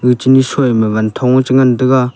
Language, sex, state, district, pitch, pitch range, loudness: Wancho, male, Arunachal Pradesh, Longding, 125 Hz, 125-130 Hz, -11 LUFS